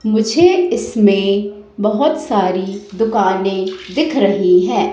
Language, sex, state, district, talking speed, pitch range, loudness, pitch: Hindi, female, Madhya Pradesh, Katni, 95 wpm, 190-225 Hz, -15 LUFS, 205 Hz